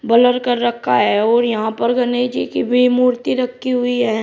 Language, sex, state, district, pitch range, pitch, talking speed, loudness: Hindi, male, Uttar Pradesh, Shamli, 230-250 Hz, 245 Hz, 210 wpm, -16 LUFS